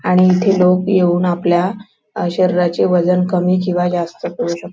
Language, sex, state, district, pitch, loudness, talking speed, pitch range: Marathi, female, Maharashtra, Nagpur, 180 Hz, -15 LUFS, 165 wpm, 175-185 Hz